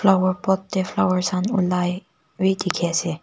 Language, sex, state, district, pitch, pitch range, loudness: Nagamese, female, Nagaland, Kohima, 185 Hz, 180-190 Hz, -22 LUFS